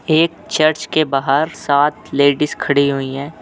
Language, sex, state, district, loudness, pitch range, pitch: Hindi, male, Uttar Pradesh, Jalaun, -16 LUFS, 140-155 Hz, 145 Hz